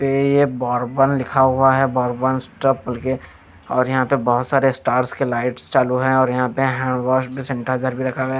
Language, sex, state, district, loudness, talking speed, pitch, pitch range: Hindi, male, Chandigarh, Chandigarh, -19 LUFS, 220 wpm, 130 Hz, 125-135 Hz